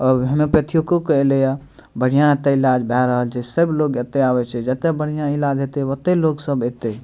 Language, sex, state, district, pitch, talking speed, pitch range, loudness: Maithili, male, Bihar, Madhepura, 140 Hz, 215 wpm, 125-150 Hz, -18 LUFS